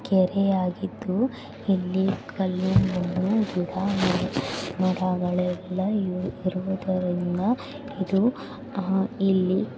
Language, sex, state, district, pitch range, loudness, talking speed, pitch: Kannada, male, Karnataka, Bijapur, 185-195 Hz, -25 LUFS, 65 wpm, 190 Hz